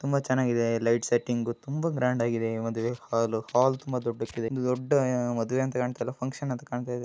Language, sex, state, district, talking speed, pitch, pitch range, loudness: Kannada, male, Karnataka, Raichur, 155 wpm, 125 Hz, 115-130 Hz, -28 LUFS